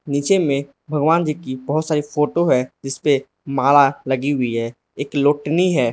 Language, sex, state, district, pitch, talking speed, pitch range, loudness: Hindi, male, Arunachal Pradesh, Lower Dibang Valley, 145 Hz, 180 wpm, 135-155 Hz, -19 LUFS